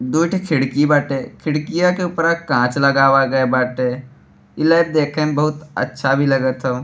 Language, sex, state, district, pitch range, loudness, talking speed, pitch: Bhojpuri, male, Uttar Pradesh, Deoria, 130-155 Hz, -17 LUFS, 175 wpm, 145 Hz